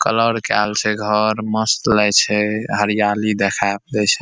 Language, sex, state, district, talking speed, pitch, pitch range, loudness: Maithili, male, Bihar, Saharsa, 155 wpm, 105 Hz, 105-110 Hz, -17 LUFS